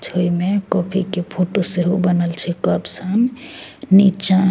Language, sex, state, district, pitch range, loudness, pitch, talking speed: Maithili, female, Bihar, Begusarai, 175-195 Hz, -18 LUFS, 185 Hz, 160 wpm